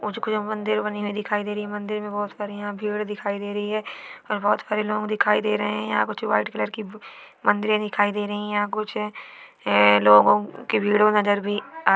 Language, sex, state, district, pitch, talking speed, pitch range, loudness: Hindi, female, Maharashtra, Dhule, 210 Hz, 230 wpm, 205-210 Hz, -23 LUFS